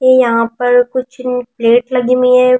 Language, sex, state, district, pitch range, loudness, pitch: Hindi, female, Delhi, New Delhi, 245-255 Hz, -13 LUFS, 250 Hz